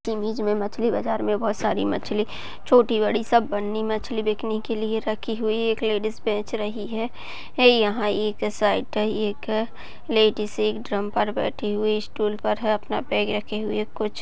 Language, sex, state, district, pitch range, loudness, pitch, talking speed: Hindi, female, Chhattisgarh, Balrampur, 210-220 Hz, -24 LUFS, 215 Hz, 165 wpm